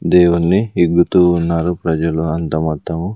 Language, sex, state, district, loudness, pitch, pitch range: Telugu, male, Andhra Pradesh, Sri Satya Sai, -15 LUFS, 85 Hz, 80-90 Hz